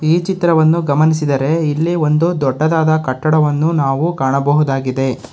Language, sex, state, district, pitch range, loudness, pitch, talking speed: Kannada, male, Karnataka, Bangalore, 140-160 Hz, -15 LUFS, 155 Hz, 90 wpm